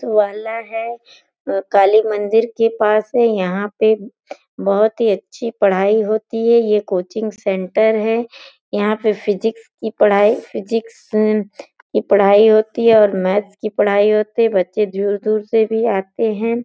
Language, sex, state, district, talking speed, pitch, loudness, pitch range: Hindi, female, Uttar Pradesh, Gorakhpur, 160 wpm, 215 Hz, -16 LUFS, 205-225 Hz